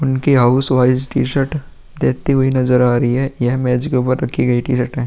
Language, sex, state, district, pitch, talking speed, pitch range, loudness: Hindi, male, Uttar Pradesh, Muzaffarnagar, 130 Hz, 215 wpm, 125-135 Hz, -16 LUFS